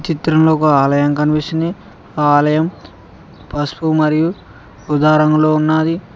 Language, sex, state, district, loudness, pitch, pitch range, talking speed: Telugu, male, Telangana, Mahabubabad, -14 LUFS, 155 Hz, 150-160 Hz, 105 wpm